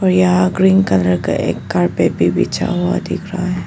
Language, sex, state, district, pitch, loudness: Hindi, female, Arunachal Pradesh, Papum Pare, 180 Hz, -15 LUFS